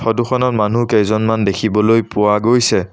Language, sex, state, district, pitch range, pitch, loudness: Assamese, male, Assam, Sonitpur, 105-115 Hz, 110 Hz, -15 LUFS